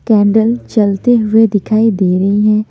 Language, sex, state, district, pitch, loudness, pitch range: Hindi, female, Maharashtra, Mumbai Suburban, 215 Hz, -12 LUFS, 205-225 Hz